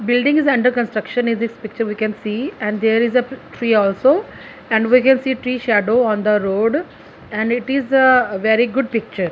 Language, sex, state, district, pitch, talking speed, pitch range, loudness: English, female, Punjab, Fazilka, 235 Hz, 195 wpm, 215-255 Hz, -17 LUFS